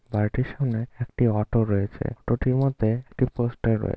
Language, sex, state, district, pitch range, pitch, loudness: Bengali, male, West Bengal, Malda, 110-130 Hz, 120 Hz, -25 LUFS